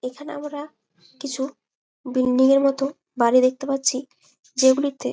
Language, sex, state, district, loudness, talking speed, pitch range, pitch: Bengali, female, West Bengal, Malda, -21 LUFS, 105 wpm, 255-280 Hz, 270 Hz